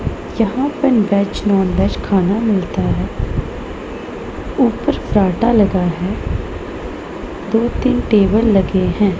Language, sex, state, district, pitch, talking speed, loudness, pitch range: Hindi, female, Punjab, Pathankot, 205 Hz, 110 wpm, -16 LUFS, 190-225 Hz